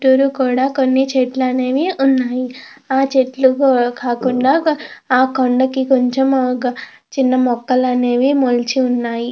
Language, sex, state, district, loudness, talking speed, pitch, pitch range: Telugu, female, Andhra Pradesh, Krishna, -16 LUFS, 105 wpm, 260 Hz, 250-265 Hz